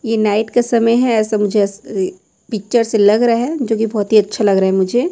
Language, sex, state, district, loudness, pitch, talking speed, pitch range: Hindi, female, Chhattisgarh, Raipur, -15 LUFS, 220 Hz, 270 wpm, 205-235 Hz